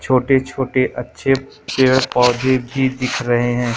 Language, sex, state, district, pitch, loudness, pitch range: Hindi, male, Madhya Pradesh, Katni, 130 Hz, -17 LUFS, 125-130 Hz